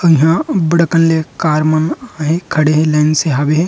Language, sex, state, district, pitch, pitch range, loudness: Chhattisgarhi, male, Chhattisgarh, Rajnandgaon, 155 Hz, 155-165 Hz, -13 LUFS